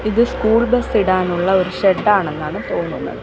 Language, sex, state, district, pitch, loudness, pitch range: Malayalam, female, Kerala, Kollam, 195 Hz, -17 LUFS, 185-225 Hz